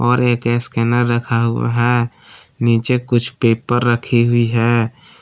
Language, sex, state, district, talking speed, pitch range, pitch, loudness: Hindi, male, Jharkhand, Palamu, 140 wpm, 115-120 Hz, 120 Hz, -16 LUFS